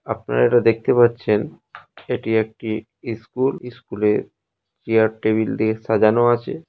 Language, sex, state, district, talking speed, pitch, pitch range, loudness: Bengali, male, West Bengal, North 24 Parganas, 135 wpm, 110 Hz, 110-120 Hz, -20 LUFS